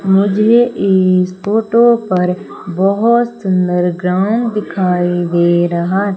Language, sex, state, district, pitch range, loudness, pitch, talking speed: Hindi, female, Madhya Pradesh, Umaria, 180-215 Hz, -13 LUFS, 190 Hz, 95 wpm